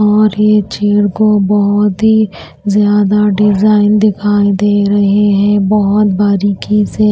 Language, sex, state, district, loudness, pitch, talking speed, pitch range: Hindi, female, Maharashtra, Washim, -11 LUFS, 205 Hz, 125 wpm, 205-210 Hz